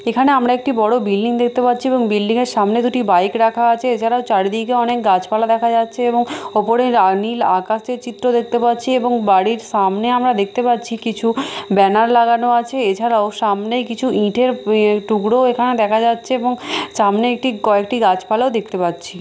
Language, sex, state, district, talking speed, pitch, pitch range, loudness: Bengali, female, Odisha, Khordha, 170 wpm, 235 Hz, 215-245 Hz, -16 LUFS